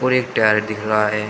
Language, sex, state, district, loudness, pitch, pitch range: Hindi, male, Uttar Pradesh, Shamli, -18 LUFS, 110 Hz, 105-115 Hz